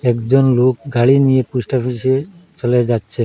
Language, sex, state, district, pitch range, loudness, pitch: Bengali, male, Assam, Hailakandi, 120-135 Hz, -15 LUFS, 130 Hz